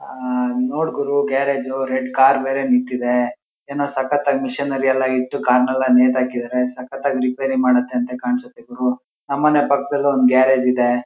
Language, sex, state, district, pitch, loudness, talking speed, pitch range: Kannada, male, Karnataka, Shimoga, 130 Hz, -18 LUFS, 140 wpm, 125-140 Hz